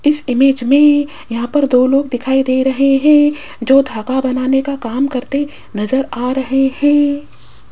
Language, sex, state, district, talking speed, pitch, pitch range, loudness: Hindi, female, Rajasthan, Jaipur, 165 wpm, 270 Hz, 255-285 Hz, -14 LUFS